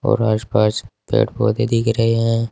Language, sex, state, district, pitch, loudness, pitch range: Hindi, male, Uttar Pradesh, Saharanpur, 115 Hz, -18 LUFS, 110-115 Hz